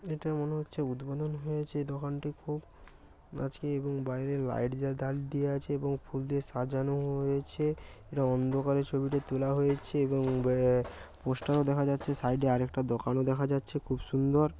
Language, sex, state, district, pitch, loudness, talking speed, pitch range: Bengali, male, West Bengal, Paschim Medinipur, 140 Hz, -32 LUFS, 160 wpm, 130-145 Hz